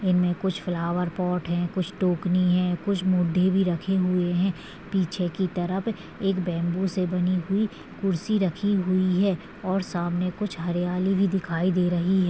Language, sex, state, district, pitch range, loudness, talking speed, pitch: Hindi, female, Maharashtra, Nagpur, 175-190 Hz, -25 LUFS, 170 wpm, 185 Hz